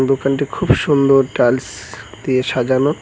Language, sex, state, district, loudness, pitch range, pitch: Bengali, male, West Bengal, Cooch Behar, -16 LUFS, 125-135 Hz, 130 Hz